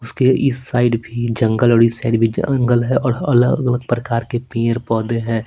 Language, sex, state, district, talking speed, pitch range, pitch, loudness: Hindi, male, Bihar, Patna, 195 wpm, 115-125 Hz, 120 Hz, -17 LUFS